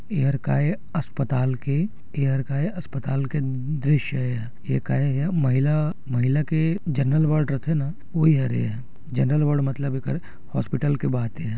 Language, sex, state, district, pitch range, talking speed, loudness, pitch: Hindi, male, Chhattisgarh, Raigarh, 130-155 Hz, 220 wpm, -24 LUFS, 140 Hz